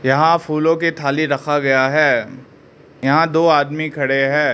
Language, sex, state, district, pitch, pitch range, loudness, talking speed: Hindi, male, Arunachal Pradesh, Lower Dibang Valley, 150 Hz, 135-160 Hz, -16 LUFS, 160 wpm